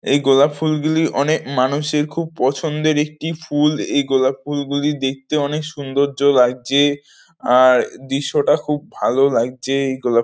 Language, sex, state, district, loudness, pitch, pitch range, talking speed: Bengali, male, West Bengal, North 24 Parganas, -18 LUFS, 140 Hz, 135-150 Hz, 130 wpm